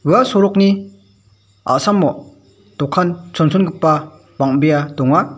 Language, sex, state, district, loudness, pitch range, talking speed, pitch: Garo, male, Meghalaya, West Garo Hills, -15 LUFS, 130-180 Hz, 80 wpm, 155 Hz